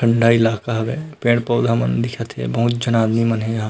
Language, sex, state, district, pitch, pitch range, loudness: Chhattisgarhi, male, Chhattisgarh, Rajnandgaon, 115 Hz, 110-120 Hz, -18 LUFS